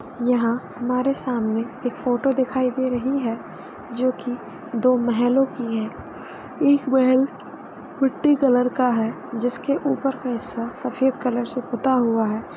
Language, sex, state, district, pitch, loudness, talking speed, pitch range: Hindi, female, Uttar Pradesh, Varanasi, 250 Hz, -22 LUFS, 155 wpm, 240-265 Hz